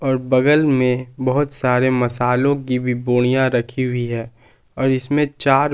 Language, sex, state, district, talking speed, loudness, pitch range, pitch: Hindi, male, Jharkhand, Palamu, 145 wpm, -18 LUFS, 125-135 Hz, 130 Hz